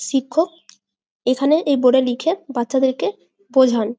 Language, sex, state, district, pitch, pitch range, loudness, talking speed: Bengali, female, West Bengal, Jalpaiguri, 265 Hz, 250-320 Hz, -18 LUFS, 120 wpm